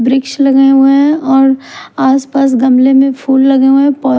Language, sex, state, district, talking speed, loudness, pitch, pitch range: Hindi, female, Haryana, Rohtak, 185 wpm, -9 LUFS, 270 Hz, 265-275 Hz